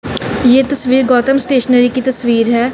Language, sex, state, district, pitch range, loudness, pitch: Hindi, female, Punjab, Kapurthala, 245-260 Hz, -12 LUFS, 255 Hz